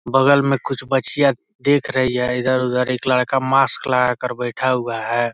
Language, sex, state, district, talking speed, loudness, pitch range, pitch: Hindi, male, Bihar, East Champaran, 190 wpm, -18 LUFS, 125-135 Hz, 130 Hz